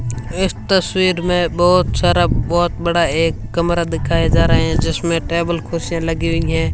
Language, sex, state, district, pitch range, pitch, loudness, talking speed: Hindi, female, Rajasthan, Bikaner, 165-175 Hz, 170 Hz, -17 LUFS, 170 wpm